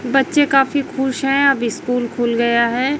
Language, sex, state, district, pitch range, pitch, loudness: Hindi, female, Chhattisgarh, Raipur, 240-275 Hz, 265 Hz, -17 LUFS